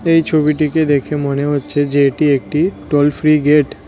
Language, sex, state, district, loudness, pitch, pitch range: Bengali, male, West Bengal, Cooch Behar, -14 LUFS, 145 Hz, 145-155 Hz